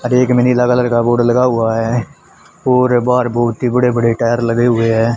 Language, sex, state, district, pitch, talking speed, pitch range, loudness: Hindi, female, Haryana, Charkhi Dadri, 120 Hz, 220 wpm, 115-125 Hz, -14 LUFS